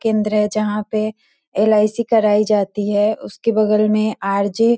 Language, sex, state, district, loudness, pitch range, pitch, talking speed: Hindi, female, Bihar, Sitamarhi, -17 LUFS, 210-220 Hz, 215 Hz, 165 wpm